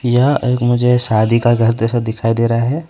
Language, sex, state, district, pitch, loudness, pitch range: Hindi, male, West Bengal, Alipurduar, 120 Hz, -14 LUFS, 115-125 Hz